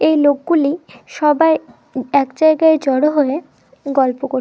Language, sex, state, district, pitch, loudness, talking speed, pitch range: Bengali, female, West Bengal, Dakshin Dinajpur, 290 Hz, -15 LUFS, 125 wpm, 275-315 Hz